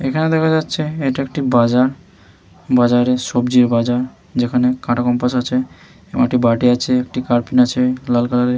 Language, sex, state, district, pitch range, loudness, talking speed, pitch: Bengali, male, West Bengal, Malda, 120-130 Hz, -16 LUFS, 160 wpm, 125 Hz